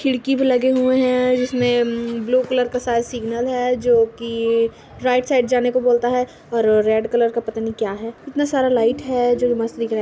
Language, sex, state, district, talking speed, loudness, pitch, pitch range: Hindi, female, Chhattisgarh, Kabirdham, 235 wpm, -19 LUFS, 245 Hz, 230-255 Hz